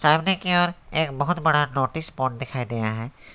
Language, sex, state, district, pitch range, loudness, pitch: Hindi, male, West Bengal, Alipurduar, 130-165 Hz, -23 LUFS, 150 Hz